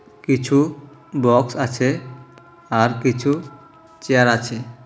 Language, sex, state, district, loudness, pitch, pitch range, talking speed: Bengali, male, Tripura, South Tripura, -19 LUFS, 130 Hz, 120-145 Hz, 85 wpm